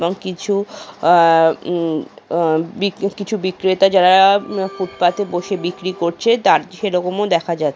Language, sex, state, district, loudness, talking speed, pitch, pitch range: Bengali, female, West Bengal, North 24 Parganas, -17 LUFS, 130 wpm, 185 Hz, 170-195 Hz